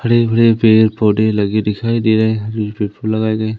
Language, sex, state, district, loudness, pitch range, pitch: Hindi, male, Madhya Pradesh, Umaria, -14 LUFS, 110-115 Hz, 110 Hz